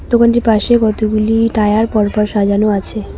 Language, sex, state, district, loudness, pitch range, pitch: Bengali, female, West Bengal, Cooch Behar, -13 LUFS, 210-225 Hz, 215 Hz